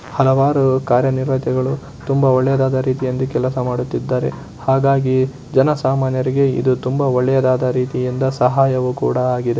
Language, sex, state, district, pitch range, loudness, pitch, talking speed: Kannada, male, Karnataka, Shimoga, 130-135 Hz, -17 LUFS, 130 Hz, 100 wpm